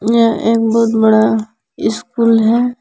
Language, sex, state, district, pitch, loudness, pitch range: Hindi, female, Jharkhand, Palamu, 225 Hz, -13 LUFS, 220-230 Hz